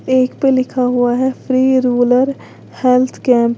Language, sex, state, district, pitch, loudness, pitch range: Hindi, female, Uttar Pradesh, Lalitpur, 255 Hz, -14 LUFS, 250-260 Hz